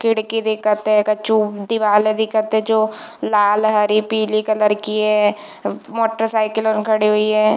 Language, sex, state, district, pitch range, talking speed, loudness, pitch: Hindi, female, Chhattisgarh, Bilaspur, 210-220 Hz, 150 wpm, -17 LUFS, 215 Hz